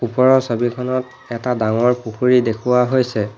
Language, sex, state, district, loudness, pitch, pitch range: Assamese, male, Assam, Hailakandi, -17 LUFS, 125 Hz, 115-125 Hz